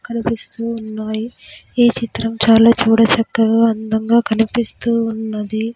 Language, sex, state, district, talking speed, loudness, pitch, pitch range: Telugu, female, Andhra Pradesh, Sri Satya Sai, 105 wpm, -16 LUFS, 225 Hz, 220-235 Hz